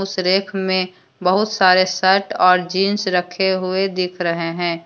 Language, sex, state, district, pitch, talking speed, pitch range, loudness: Hindi, female, Jharkhand, Deoghar, 185 Hz, 160 wpm, 180-190 Hz, -17 LUFS